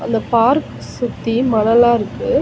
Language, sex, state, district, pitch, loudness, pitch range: Tamil, female, Tamil Nadu, Chennai, 235 Hz, -16 LUFS, 225-240 Hz